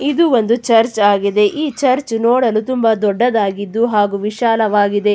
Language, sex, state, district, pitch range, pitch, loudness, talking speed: Kannada, female, Karnataka, Chamarajanagar, 205-245 Hz, 225 Hz, -15 LUFS, 130 wpm